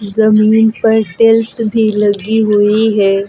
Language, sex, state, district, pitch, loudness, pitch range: Hindi, female, Uttar Pradesh, Lucknow, 220 Hz, -11 LUFS, 205-225 Hz